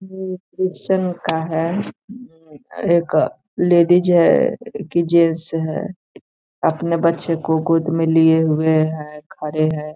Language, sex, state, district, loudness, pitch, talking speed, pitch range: Hindi, female, Bihar, Saran, -18 LUFS, 165 Hz, 120 wpm, 160-180 Hz